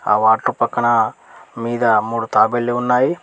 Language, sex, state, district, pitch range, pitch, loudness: Telugu, male, Telangana, Mahabubabad, 115-120 Hz, 120 Hz, -17 LUFS